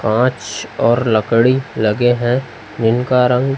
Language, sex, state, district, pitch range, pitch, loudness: Hindi, male, Chhattisgarh, Raipur, 115-125 Hz, 120 Hz, -15 LUFS